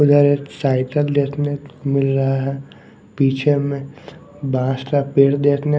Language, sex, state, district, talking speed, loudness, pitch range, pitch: Hindi, male, Bihar, West Champaran, 145 wpm, -18 LUFS, 135-145 Hz, 140 Hz